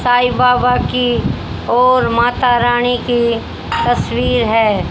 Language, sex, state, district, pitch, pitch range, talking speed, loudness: Hindi, female, Haryana, Rohtak, 245 Hz, 235-245 Hz, 110 wpm, -14 LUFS